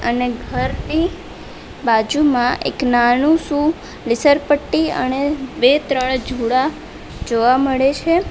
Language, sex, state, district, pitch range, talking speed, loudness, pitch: Gujarati, female, Gujarat, Valsad, 245-300 Hz, 110 wpm, -17 LUFS, 270 Hz